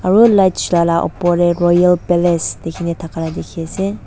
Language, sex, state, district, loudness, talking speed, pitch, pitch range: Nagamese, female, Nagaland, Dimapur, -15 LUFS, 150 wpm, 175 Hz, 170-180 Hz